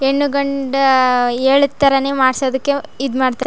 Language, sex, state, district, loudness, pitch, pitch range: Kannada, female, Karnataka, Chamarajanagar, -15 LUFS, 270 Hz, 260-280 Hz